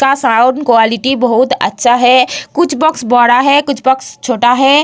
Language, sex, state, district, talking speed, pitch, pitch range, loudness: Hindi, female, Bihar, Vaishali, 175 wpm, 255 Hz, 245-275 Hz, -10 LUFS